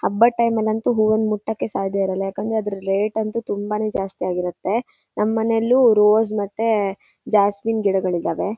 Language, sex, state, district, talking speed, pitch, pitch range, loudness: Kannada, female, Karnataka, Shimoga, 140 wpm, 210 Hz, 195-225 Hz, -20 LUFS